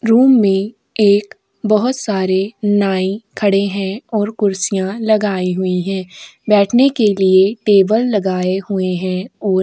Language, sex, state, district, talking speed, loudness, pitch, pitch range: Hindi, female, Uttar Pradesh, Etah, 135 wpm, -15 LUFS, 200 Hz, 190-215 Hz